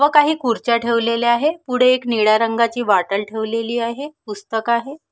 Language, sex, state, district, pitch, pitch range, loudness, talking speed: Marathi, female, Maharashtra, Nagpur, 235 Hz, 225-255 Hz, -18 LUFS, 165 wpm